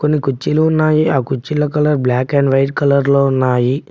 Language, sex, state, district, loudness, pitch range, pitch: Telugu, male, Telangana, Mahabubabad, -15 LUFS, 135-150 Hz, 140 Hz